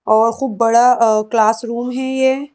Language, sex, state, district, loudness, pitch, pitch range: Hindi, female, Madhya Pradesh, Bhopal, -15 LUFS, 235 Hz, 225-260 Hz